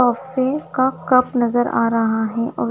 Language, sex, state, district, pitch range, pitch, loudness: Hindi, female, Punjab, Fazilka, 230-255 Hz, 240 Hz, -19 LUFS